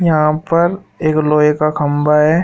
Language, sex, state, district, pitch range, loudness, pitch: Hindi, male, Uttar Pradesh, Shamli, 150-165 Hz, -14 LUFS, 155 Hz